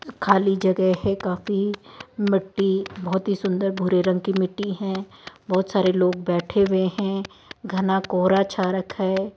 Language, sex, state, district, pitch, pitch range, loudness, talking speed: Hindi, female, Rajasthan, Jaipur, 190 Hz, 185-200 Hz, -23 LUFS, 155 wpm